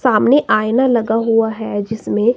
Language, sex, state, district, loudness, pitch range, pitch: Hindi, female, Himachal Pradesh, Shimla, -15 LUFS, 220-245 Hz, 225 Hz